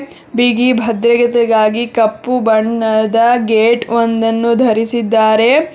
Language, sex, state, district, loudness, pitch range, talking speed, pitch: Kannada, female, Karnataka, Bangalore, -12 LUFS, 225-240 Hz, 75 wpm, 230 Hz